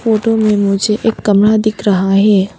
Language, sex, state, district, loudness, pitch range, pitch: Hindi, female, Arunachal Pradesh, Papum Pare, -12 LUFS, 200-220 Hz, 210 Hz